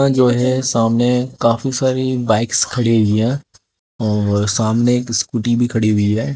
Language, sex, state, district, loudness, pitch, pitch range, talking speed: Hindi, male, Haryana, Jhajjar, -16 LUFS, 120 Hz, 110-125 Hz, 170 wpm